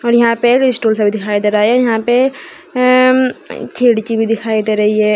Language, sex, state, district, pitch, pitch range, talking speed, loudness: Hindi, female, Uttar Pradesh, Shamli, 230 Hz, 215-250 Hz, 195 wpm, -13 LUFS